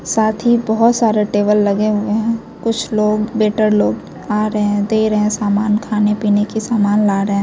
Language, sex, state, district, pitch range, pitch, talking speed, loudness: Hindi, female, Bihar, Muzaffarpur, 210-220 Hz, 210 Hz, 200 wpm, -16 LUFS